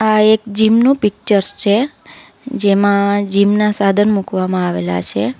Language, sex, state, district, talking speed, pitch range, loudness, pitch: Gujarati, female, Gujarat, Valsad, 145 wpm, 200-215 Hz, -14 LUFS, 205 Hz